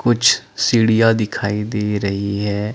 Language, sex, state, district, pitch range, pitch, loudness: Hindi, male, Chandigarh, Chandigarh, 100-115 Hz, 105 Hz, -17 LUFS